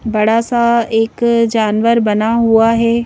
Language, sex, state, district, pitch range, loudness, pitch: Hindi, female, Madhya Pradesh, Bhopal, 225-235 Hz, -13 LUFS, 230 Hz